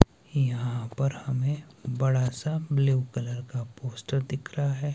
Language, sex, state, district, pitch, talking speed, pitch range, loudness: Hindi, male, Himachal Pradesh, Shimla, 135 Hz, 145 wpm, 125-140 Hz, -29 LUFS